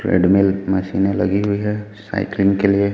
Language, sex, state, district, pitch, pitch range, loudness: Hindi, male, Chhattisgarh, Raipur, 100 Hz, 95-100 Hz, -18 LUFS